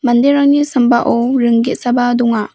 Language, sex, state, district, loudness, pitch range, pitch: Garo, female, Meghalaya, West Garo Hills, -13 LUFS, 240-260 Hz, 245 Hz